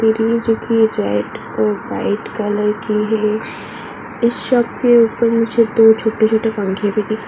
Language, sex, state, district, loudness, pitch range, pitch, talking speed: Hindi, female, Uttar Pradesh, Muzaffarnagar, -16 LUFS, 210-230 Hz, 220 Hz, 175 wpm